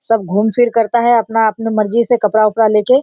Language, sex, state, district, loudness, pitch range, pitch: Hindi, female, Bihar, Kishanganj, -13 LUFS, 215-235 Hz, 225 Hz